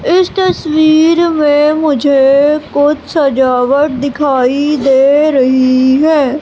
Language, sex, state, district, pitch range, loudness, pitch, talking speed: Hindi, female, Madhya Pradesh, Umaria, 270-310 Hz, -10 LUFS, 290 Hz, 95 wpm